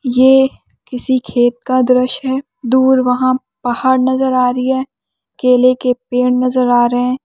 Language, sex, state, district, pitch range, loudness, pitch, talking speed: Hindi, male, Bihar, Bhagalpur, 250-260 Hz, -14 LUFS, 255 Hz, 165 wpm